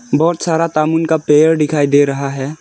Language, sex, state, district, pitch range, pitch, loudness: Hindi, male, Arunachal Pradesh, Lower Dibang Valley, 145-160 Hz, 155 Hz, -14 LUFS